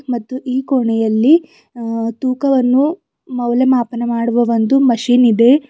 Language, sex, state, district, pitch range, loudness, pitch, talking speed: Kannada, female, Karnataka, Bidar, 235-265 Hz, -15 LUFS, 245 Hz, 105 wpm